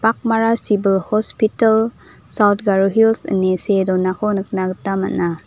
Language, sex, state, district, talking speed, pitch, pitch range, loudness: Garo, female, Meghalaya, South Garo Hills, 130 wpm, 205 Hz, 190-225 Hz, -17 LUFS